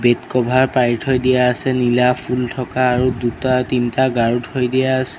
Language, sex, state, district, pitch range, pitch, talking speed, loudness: Assamese, male, Assam, Sonitpur, 125-130 Hz, 125 Hz, 175 wpm, -17 LUFS